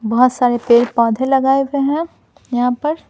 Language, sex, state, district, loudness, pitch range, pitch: Hindi, female, Bihar, Patna, -15 LUFS, 240-275 Hz, 255 Hz